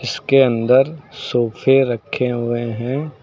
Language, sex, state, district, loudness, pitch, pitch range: Hindi, male, Uttar Pradesh, Lucknow, -17 LUFS, 125 Hz, 120-135 Hz